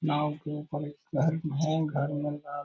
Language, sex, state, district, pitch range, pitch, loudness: Hindi, male, Bihar, Purnia, 145-155 Hz, 150 Hz, -31 LUFS